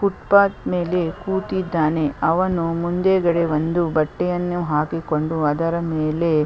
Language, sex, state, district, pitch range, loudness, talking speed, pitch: Kannada, female, Karnataka, Chamarajanagar, 155-180 Hz, -20 LUFS, 110 wpm, 170 Hz